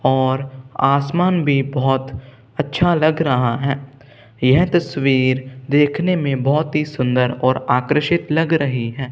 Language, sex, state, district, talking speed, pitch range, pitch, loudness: Hindi, male, Punjab, Kapurthala, 130 wpm, 130-150 Hz, 135 Hz, -18 LUFS